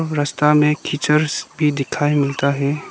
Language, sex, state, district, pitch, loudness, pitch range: Hindi, male, Arunachal Pradesh, Lower Dibang Valley, 150 Hz, -18 LUFS, 145-150 Hz